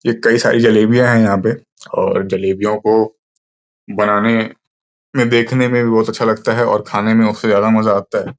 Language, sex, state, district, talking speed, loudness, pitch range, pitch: Hindi, male, Uttar Pradesh, Gorakhpur, 195 wpm, -14 LUFS, 105-115 Hz, 110 Hz